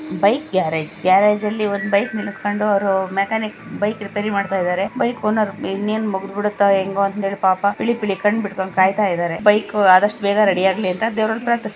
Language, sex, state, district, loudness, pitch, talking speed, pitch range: Kannada, female, Karnataka, Dakshina Kannada, -19 LUFS, 200 Hz, 180 wpm, 190-210 Hz